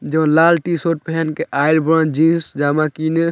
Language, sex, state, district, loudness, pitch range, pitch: Bhojpuri, male, Bihar, Muzaffarpur, -16 LUFS, 155-165 Hz, 160 Hz